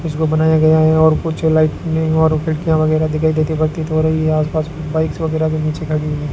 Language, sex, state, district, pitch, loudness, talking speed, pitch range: Hindi, male, Rajasthan, Bikaner, 155 Hz, -16 LUFS, 225 wpm, 155-160 Hz